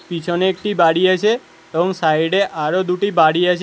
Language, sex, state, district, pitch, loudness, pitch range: Bengali, male, Karnataka, Bangalore, 180 Hz, -17 LUFS, 165-190 Hz